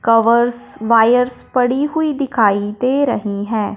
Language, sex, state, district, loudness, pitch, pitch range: Hindi, male, Punjab, Fazilka, -16 LUFS, 240 Hz, 220-260 Hz